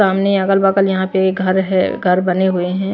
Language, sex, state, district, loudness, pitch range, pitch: Hindi, female, Maharashtra, Washim, -15 LUFS, 185-195 Hz, 190 Hz